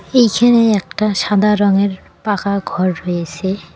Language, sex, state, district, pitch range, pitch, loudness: Bengali, female, West Bengal, Cooch Behar, 190-215 Hz, 200 Hz, -15 LUFS